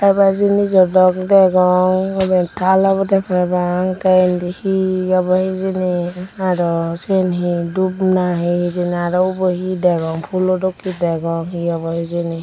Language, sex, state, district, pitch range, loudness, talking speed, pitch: Chakma, female, Tripura, Unakoti, 175-190 Hz, -16 LUFS, 140 wpm, 185 Hz